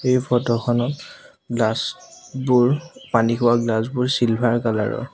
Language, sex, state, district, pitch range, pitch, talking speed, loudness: Assamese, male, Assam, Sonitpur, 115-125 Hz, 120 Hz, 140 wpm, -20 LUFS